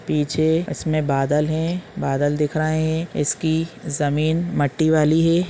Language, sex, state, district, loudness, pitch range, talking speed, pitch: Hindi, male, Chhattisgarh, Balrampur, -21 LUFS, 150-160 Hz, 140 wpm, 155 Hz